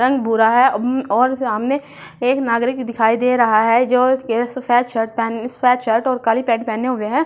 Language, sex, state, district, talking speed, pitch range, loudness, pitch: Hindi, female, Delhi, New Delhi, 190 wpm, 225-255 Hz, -17 LUFS, 245 Hz